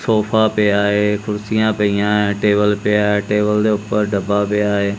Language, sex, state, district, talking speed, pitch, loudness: Punjabi, male, Punjab, Kapurthala, 180 wpm, 105 Hz, -16 LUFS